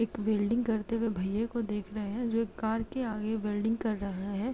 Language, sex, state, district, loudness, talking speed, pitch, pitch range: Hindi, female, Uttar Pradesh, Jalaun, -32 LUFS, 240 wpm, 220 Hz, 210-230 Hz